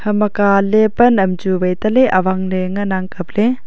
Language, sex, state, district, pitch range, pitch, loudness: Wancho, female, Arunachal Pradesh, Longding, 185-215 Hz, 200 Hz, -15 LUFS